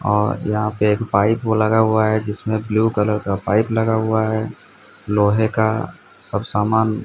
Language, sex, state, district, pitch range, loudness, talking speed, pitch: Hindi, male, Odisha, Sambalpur, 105-110 Hz, -19 LUFS, 180 wpm, 110 Hz